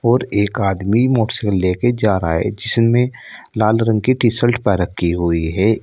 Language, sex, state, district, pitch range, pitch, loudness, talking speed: Hindi, male, Uttar Pradesh, Saharanpur, 95-120 Hz, 110 Hz, -17 LUFS, 205 wpm